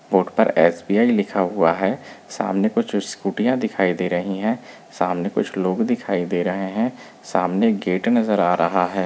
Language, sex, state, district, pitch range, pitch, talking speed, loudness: Hindi, male, Chhattisgarh, Bilaspur, 90-115 Hz, 95 Hz, 170 wpm, -21 LUFS